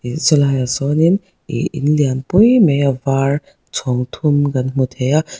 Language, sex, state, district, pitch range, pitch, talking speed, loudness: Mizo, female, Mizoram, Aizawl, 130-155 Hz, 140 Hz, 165 wpm, -16 LUFS